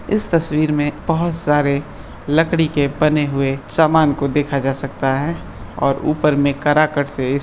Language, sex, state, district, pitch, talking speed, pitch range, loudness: Hindi, male, Bihar, East Champaran, 145 Hz, 180 wpm, 140-155 Hz, -17 LUFS